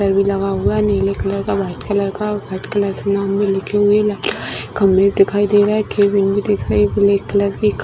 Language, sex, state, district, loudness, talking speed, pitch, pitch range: Hindi, female, Bihar, Jamui, -16 LUFS, 220 wpm, 200 Hz, 195-205 Hz